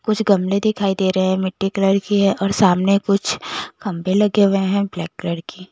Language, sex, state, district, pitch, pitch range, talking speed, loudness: Hindi, female, Chandigarh, Chandigarh, 195 Hz, 185-200 Hz, 210 wpm, -18 LUFS